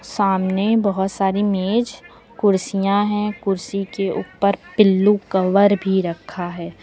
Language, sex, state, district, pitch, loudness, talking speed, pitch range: Hindi, female, Uttar Pradesh, Lucknow, 195 Hz, -19 LUFS, 125 wpm, 190-205 Hz